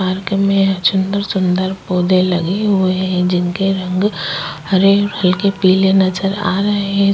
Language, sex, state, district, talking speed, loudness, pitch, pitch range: Hindi, female, Bihar, Vaishali, 125 wpm, -15 LUFS, 190 Hz, 185-195 Hz